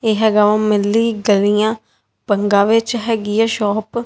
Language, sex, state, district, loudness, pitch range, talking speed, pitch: Punjabi, female, Punjab, Kapurthala, -16 LUFS, 205-225 Hz, 180 wpm, 215 Hz